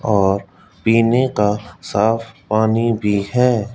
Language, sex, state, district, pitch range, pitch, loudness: Hindi, male, Rajasthan, Jaipur, 105-115 Hz, 110 Hz, -18 LUFS